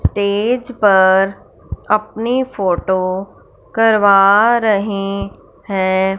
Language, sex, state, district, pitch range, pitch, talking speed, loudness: Hindi, female, Punjab, Fazilka, 190-220 Hz, 200 Hz, 70 wpm, -15 LUFS